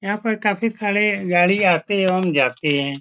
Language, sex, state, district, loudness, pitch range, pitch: Hindi, male, Uttar Pradesh, Etah, -19 LUFS, 165-205 Hz, 185 Hz